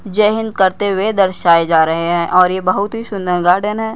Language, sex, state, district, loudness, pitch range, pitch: Hindi, female, Delhi, New Delhi, -14 LUFS, 180-210 Hz, 190 Hz